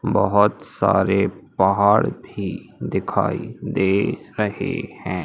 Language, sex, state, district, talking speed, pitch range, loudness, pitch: Hindi, male, Madhya Pradesh, Umaria, 90 wpm, 95-105 Hz, -21 LUFS, 100 Hz